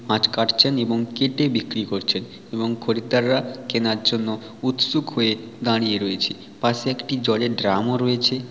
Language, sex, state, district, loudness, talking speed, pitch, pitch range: Bengali, male, West Bengal, Paschim Medinipur, -21 LUFS, 150 wpm, 115 Hz, 110-125 Hz